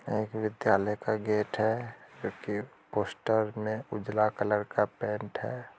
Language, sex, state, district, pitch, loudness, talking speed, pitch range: Hindi, male, Jharkhand, Jamtara, 110 Hz, -31 LUFS, 145 wpm, 105-110 Hz